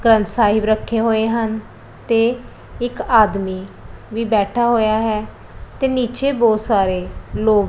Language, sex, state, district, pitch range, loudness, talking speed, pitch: Punjabi, female, Punjab, Pathankot, 215-235 Hz, -18 LUFS, 135 wpm, 220 Hz